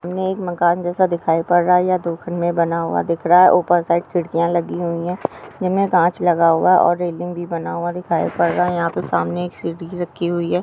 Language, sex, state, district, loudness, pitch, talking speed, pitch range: Hindi, female, Maharashtra, Aurangabad, -18 LUFS, 175 Hz, 230 wpm, 170-180 Hz